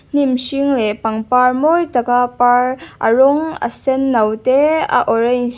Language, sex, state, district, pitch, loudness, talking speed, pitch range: Mizo, female, Mizoram, Aizawl, 250 Hz, -15 LUFS, 150 wpm, 245-275 Hz